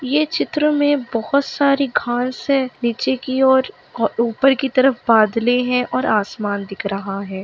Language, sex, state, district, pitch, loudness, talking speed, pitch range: Hindi, female, Bihar, Kishanganj, 255 Hz, -18 LUFS, 160 wpm, 225-270 Hz